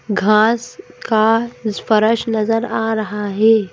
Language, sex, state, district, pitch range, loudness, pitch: Hindi, female, Madhya Pradesh, Bhopal, 215-225 Hz, -16 LUFS, 220 Hz